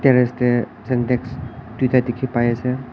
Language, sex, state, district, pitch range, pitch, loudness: Nagamese, male, Nagaland, Kohima, 120-130 Hz, 125 Hz, -20 LUFS